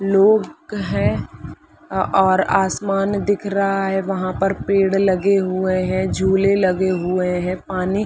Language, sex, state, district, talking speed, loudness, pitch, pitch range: Hindi, female, Chhattisgarh, Balrampur, 140 wpm, -19 LUFS, 195 Hz, 185-195 Hz